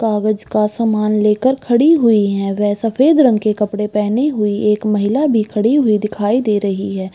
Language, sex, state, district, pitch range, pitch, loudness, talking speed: Hindi, female, Bihar, Bhagalpur, 210-235 Hz, 215 Hz, -15 LUFS, 195 wpm